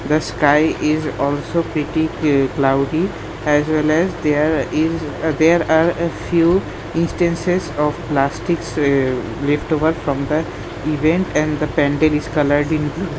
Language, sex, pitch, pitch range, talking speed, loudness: English, male, 155 Hz, 145-165 Hz, 145 wpm, -18 LUFS